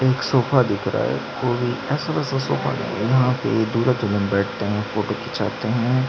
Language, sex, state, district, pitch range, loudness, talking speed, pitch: Hindi, male, Chhattisgarh, Sukma, 105-130 Hz, -22 LUFS, 195 wpm, 125 Hz